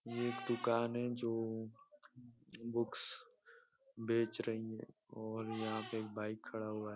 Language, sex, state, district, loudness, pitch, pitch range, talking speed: Hindi, male, Uttar Pradesh, Ghazipur, -41 LUFS, 115 Hz, 110-125 Hz, 145 wpm